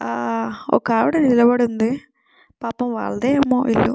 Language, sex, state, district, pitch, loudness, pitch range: Telugu, female, Telangana, Nalgonda, 240 Hz, -19 LUFS, 225-270 Hz